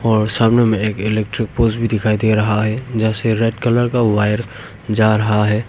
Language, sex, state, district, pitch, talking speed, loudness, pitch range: Hindi, male, Arunachal Pradesh, Longding, 110 Hz, 190 wpm, -16 LUFS, 105-115 Hz